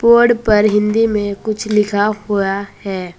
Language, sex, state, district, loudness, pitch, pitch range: Hindi, female, Uttar Pradesh, Saharanpur, -15 LUFS, 210 Hz, 200-220 Hz